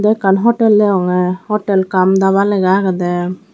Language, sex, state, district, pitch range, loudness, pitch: Chakma, female, Tripura, Dhalai, 185-210 Hz, -13 LUFS, 195 Hz